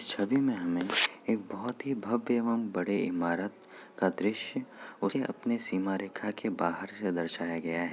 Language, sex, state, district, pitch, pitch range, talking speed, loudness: Hindi, male, Bihar, Kishanganj, 105 Hz, 85-120 Hz, 175 wpm, -32 LUFS